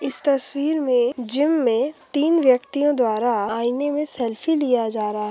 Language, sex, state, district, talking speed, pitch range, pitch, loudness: Hindi, female, Uttar Pradesh, Hamirpur, 170 wpm, 235-290 Hz, 260 Hz, -19 LUFS